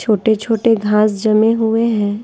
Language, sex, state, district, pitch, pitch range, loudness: Hindi, female, Bihar, Patna, 220 Hz, 210-225 Hz, -15 LUFS